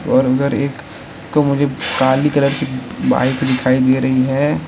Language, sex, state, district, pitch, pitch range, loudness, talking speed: Hindi, male, Uttar Pradesh, Lalitpur, 135 Hz, 130-140 Hz, -16 LUFS, 165 wpm